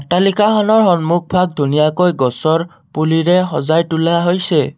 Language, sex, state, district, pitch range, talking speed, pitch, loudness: Assamese, male, Assam, Kamrup Metropolitan, 155-180 Hz, 115 wpm, 170 Hz, -14 LUFS